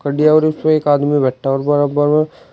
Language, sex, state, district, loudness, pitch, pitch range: Hindi, male, Uttar Pradesh, Shamli, -15 LUFS, 145 Hz, 145-155 Hz